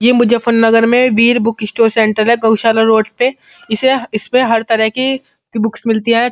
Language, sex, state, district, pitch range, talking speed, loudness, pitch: Hindi, male, Uttar Pradesh, Muzaffarnagar, 225-245 Hz, 190 wpm, -12 LUFS, 230 Hz